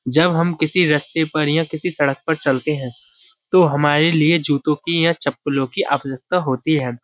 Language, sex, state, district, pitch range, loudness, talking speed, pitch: Hindi, male, Uttar Pradesh, Budaun, 140-165 Hz, -18 LUFS, 190 wpm, 155 Hz